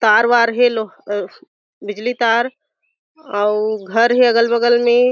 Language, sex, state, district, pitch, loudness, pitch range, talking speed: Chhattisgarhi, female, Chhattisgarh, Jashpur, 235 Hz, -16 LUFS, 215-245 Hz, 150 wpm